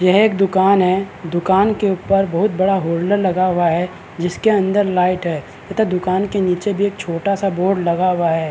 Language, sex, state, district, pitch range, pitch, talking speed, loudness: Hindi, male, Chhattisgarh, Balrampur, 175-200 Hz, 190 Hz, 205 wpm, -17 LUFS